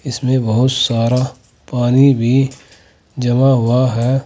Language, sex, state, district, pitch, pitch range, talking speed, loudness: Hindi, male, Uttar Pradesh, Saharanpur, 125 Hz, 120-130 Hz, 110 wpm, -15 LUFS